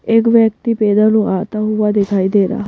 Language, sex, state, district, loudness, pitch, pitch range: Hindi, female, Madhya Pradesh, Bhopal, -14 LUFS, 215 Hz, 205-225 Hz